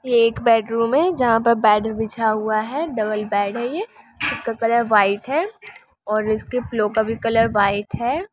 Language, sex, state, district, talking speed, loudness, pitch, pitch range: Hindi, female, Bihar, Sitamarhi, 185 wpm, -20 LUFS, 225 Hz, 215-245 Hz